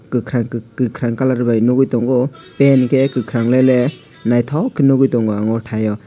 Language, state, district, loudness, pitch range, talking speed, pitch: Kokborok, Tripura, West Tripura, -16 LUFS, 115-135 Hz, 150 wpm, 125 Hz